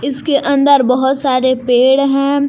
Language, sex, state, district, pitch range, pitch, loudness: Hindi, female, Jharkhand, Palamu, 260-280 Hz, 275 Hz, -12 LUFS